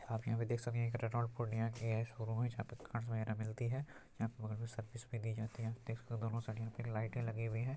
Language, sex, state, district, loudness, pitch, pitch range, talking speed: Hindi, male, Bihar, Purnia, -42 LUFS, 115 Hz, 110-120 Hz, 295 wpm